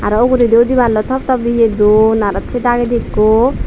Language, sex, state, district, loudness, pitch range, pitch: Chakma, female, Tripura, Dhalai, -12 LUFS, 215-245 Hz, 235 Hz